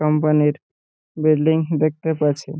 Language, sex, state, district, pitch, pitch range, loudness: Bengali, male, West Bengal, Purulia, 155 Hz, 150-155 Hz, -19 LUFS